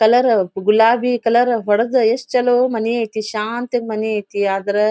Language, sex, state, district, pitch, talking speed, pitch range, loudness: Kannada, female, Karnataka, Dharwad, 225 Hz, 145 wpm, 210-245 Hz, -17 LUFS